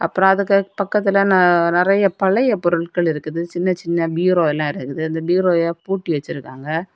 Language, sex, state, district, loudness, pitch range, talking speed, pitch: Tamil, female, Tamil Nadu, Kanyakumari, -18 LUFS, 165-195 Hz, 145 wpm, 175 Hz